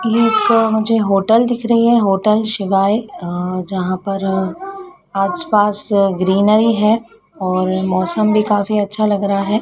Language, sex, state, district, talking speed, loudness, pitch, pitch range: Hindi, female, Madhya Pradesh, Dhar, 160 wpm, -15 LUFS, 205 Hz, 195-225 Hz